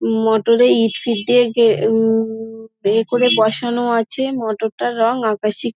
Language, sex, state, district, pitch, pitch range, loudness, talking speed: Bengali, female, West Bengal, Dakshin Dinajpur, 225 Hz, 220-240 Hz, -16 LUFS, 155 wpm